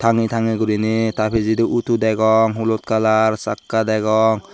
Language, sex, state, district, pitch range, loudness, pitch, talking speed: Chakma, male, Tripura, Dhalai, 110-115 Hz, -18 LUFS, 110 Hz, 145 wpm